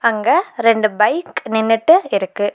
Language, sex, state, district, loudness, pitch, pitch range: Tamil, female, Tamil Nadu, Nilgiris, -15 LUFS, 220 Hz, 205-235 Hz